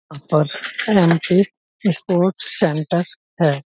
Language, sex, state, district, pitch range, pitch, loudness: Hindi, male, Uttar Pradesh, Budaun, 155-190 Hz, 175 Hz, -18 LUFS